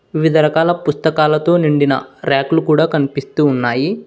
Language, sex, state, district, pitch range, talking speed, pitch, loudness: Telugu, male, Telangana, Hyderabad, 140-160 Hz, 120 wpm, 155 Hz, -15 LUFS